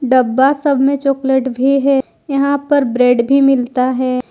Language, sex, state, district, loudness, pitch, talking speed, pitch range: Hindi, female, Jharkhand, Ranchi, -14 LUFS, 270 Hz, 165 wpm, 255-275 Hz